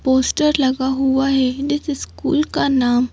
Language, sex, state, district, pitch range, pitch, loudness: Hindi, female, Madhya Pradesh, Bhopal, 260-290 Hz, 270 Hz, -18 LUFS